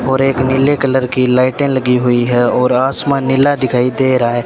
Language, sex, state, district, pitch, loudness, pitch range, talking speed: Hindi, male, Rajasthan, Bikaner, 130 Hz, -13 LUFS, 125-135 Hz, 215 wpm